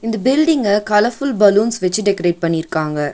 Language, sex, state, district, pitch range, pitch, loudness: Tamil, female, Tamil Nadu, Nilgiris, 175-230 Hz, 205 Hz, -16 LUFS